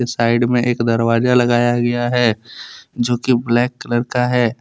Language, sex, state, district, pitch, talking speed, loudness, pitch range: Hindi, male, Jharkhand, Deoghar, 120 Hz, 170 wpm, -16 LUFS, 120-125 Hz